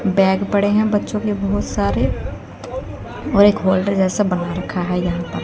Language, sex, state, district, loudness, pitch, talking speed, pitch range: Hindi, female, Haryana, Jhajjar, -18 LUFS, 195 Hz, 175 wpm, 185-205 Hz